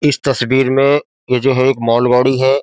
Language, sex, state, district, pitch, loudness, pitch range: Hindi, male, Uttar Pradesh, Jyotiba Phule Nagar, 130 Hz, -14 LUFS, 125-135 Hz